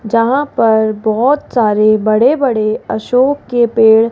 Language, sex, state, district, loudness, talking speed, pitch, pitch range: Hindi, female, Rajasthan, Jaipur, -12 LUFS, 130 wpm, 230 Hz, 215-250 Hz